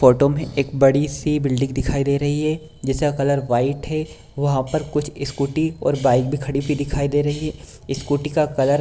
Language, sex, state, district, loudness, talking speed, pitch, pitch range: Hindi, male, Bihar, Kishanganj, -21 LUFS, 210 wpm, 140 Hz, 135-150 Hz